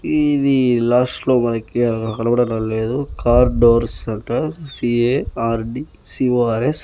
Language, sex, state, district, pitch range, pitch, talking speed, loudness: Telugu, male, Andhra Pradesh, Annamaya, 115-130 Hz, 120 Hz, 95 wpm, -18 LUFS